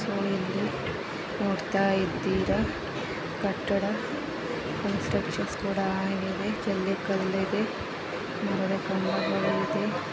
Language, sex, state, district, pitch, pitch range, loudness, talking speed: Kannada, female, Karnataka, Shimoga, 195 Hz, 190-200 Hz, -29 LUFS, 70 wpm